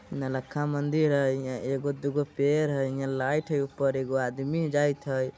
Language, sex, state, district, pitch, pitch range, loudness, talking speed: Bajjika, male, Bihar, Vaishali, 140 Hz, 135-145 Hz, -28 LUFS, 165 wpm